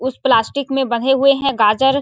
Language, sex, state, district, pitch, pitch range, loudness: Hindi, female, Chhattisgarh, Sarguja, 270 Hz, 255-275 Hz, -15 LUFS